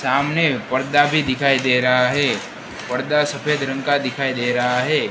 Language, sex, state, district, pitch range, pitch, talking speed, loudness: Hindi, male, Gujarat, Gandhinagar, 125-145 Hz, 135 Hz, 175 wpm, -19 LUFS